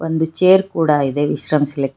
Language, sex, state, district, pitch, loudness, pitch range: Kannada, female, Karnataka, Bangalore, 155 Hz, -16 LUFS, 145-165 Hz